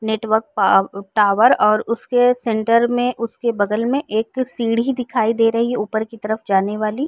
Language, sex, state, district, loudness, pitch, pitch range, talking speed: Hindi, female, Uttar Pradesh, Jyotiba Phule Nagar, -18 LUFS, 225 Hz, 215-240 Hz, 185 wpm